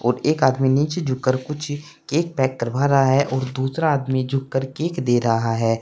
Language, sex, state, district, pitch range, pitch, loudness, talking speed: Hindi, male, Uttar Pradesh, Saharanpur, 130-145 Hz, 135 Hz, -21 LUFS, 215 wpm